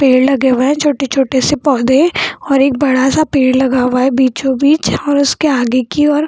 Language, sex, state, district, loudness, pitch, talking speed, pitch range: Hindi, female, Bihar, Jamui, -12 LUFS, 270 Hz, 200 wpm, 260-290 Hz